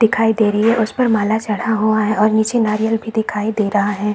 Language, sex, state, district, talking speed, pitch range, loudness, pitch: Hindi, female, Bihar, Saran, 245 wpm, 210-225 Hz, -16 LUFS, 220 Hz